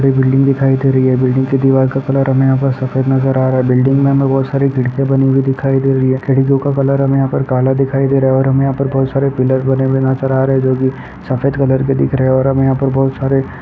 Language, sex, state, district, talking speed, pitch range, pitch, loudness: Hindi, male, Uttar Pradesh, Ghazipur, 285 wpm, 130-135 Hz, 135 Hz, -13 LUFS